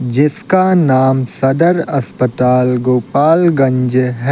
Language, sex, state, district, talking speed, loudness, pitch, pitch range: Hindi, male, Uttar Pradesh, Lucknow, 85 wpm, -13 LUFS, 130 Hz, 125-155 Hz